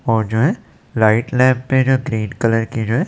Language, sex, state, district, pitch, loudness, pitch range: Hindi, male, Chandigarh, Chandigarh, 120 Hz, -17 LUFS, 110-130 Hz